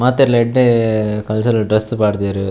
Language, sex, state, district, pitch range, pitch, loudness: Tulu, male, Karnataka, Dakshina Kannada, 105-120 Hz, 110 Hz, -15 LUFS